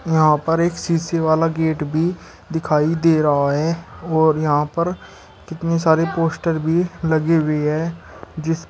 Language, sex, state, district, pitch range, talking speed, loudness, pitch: Hindi, male, Uttar Pradesh, Shamli, 155-165 Hz, 150 wpm, -19 LUFS, 160 Hz